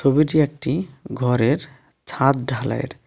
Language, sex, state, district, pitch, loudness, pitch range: Bengali, male, West Bengal, Darjeeling, 135 Hz, -21 LUFS, 130-150 Hz